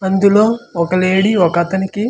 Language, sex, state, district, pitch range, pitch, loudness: Telugu, male, Andhra Pradesh, Manyam, 185-210 Hz, 190 Hz, -14 LUFS